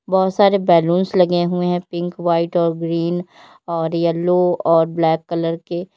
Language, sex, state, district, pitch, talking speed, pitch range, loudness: Hindi, female, Uttar Pradesh, Lalitpur, 175 Hz, 160 wpm, 165-180 Hz, -18 LUFS